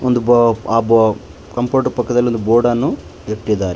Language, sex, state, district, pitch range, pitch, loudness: Kannada, male, Karnataka, Bangalore, 105-120 Hz, 115 Hz, -15 LUFS